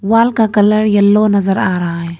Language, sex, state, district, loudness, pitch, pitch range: Hindi, female, Arunachal Pradesh, Papum Pare, -12 LUFS, 205 Hz, 195-215 Hz